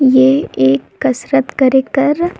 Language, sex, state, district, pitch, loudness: Sadri, female, Chhattisgarh, Jashpur, 260 Hz, -13 LUFS